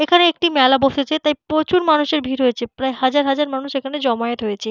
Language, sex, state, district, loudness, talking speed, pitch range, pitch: Bengali, female, West Bengal, Purulia, -18 LUFS, 205 wpm, 260-305 Hz, 275 Hz